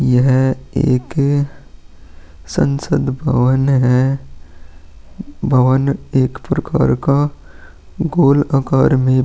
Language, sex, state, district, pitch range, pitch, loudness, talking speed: Hindi, male, Maharashtra, Aurangabad, 125-140 Hz, 130 Hz, -15 LUFS, 85 wpm